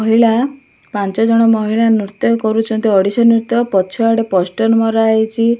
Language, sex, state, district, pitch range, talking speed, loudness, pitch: Odia, male, Odisha, Malkangiri, 220-230 Hz, 105 wpm, -14 LUFS, 225 Hz